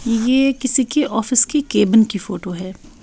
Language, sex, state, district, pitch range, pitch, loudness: Hindi, female, Bihar, Patna, 205-260 Hz, 230 Hz, -16 LUFS